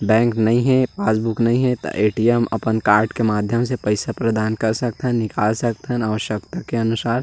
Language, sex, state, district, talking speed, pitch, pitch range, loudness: Chhattisgarhi, male, Chhattisgarh, Rajnandgaon, 200 wpm, 115 Hz, 110-120 Hz, -19 LUFS